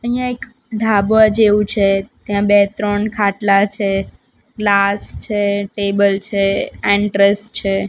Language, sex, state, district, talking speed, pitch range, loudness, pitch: Gujarati, female, Gujarat, Gandhinagar, 120 wpm, 200-215 Hz, -16 LUFS, 205 Hz